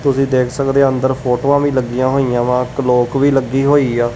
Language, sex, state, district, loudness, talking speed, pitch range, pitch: Punjabi, male, Punjab, Kapurthala, -15 LUFS, 200 wpm, 125-135 Hz, 130 Hz